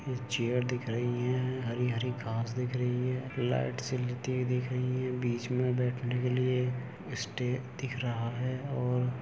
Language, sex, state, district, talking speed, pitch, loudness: Hindi, male, Uttar Pradesh, Muzaffarnagar, 190 wpm, 125 Hz, -33 LUFS